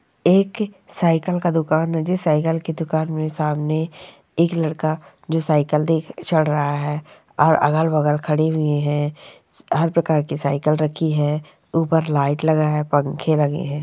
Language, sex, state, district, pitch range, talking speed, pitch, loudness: Hindi, female, Bihar, Purnia, 150-165 Hz, 155 wpm, 155 Hz, -20 LUFS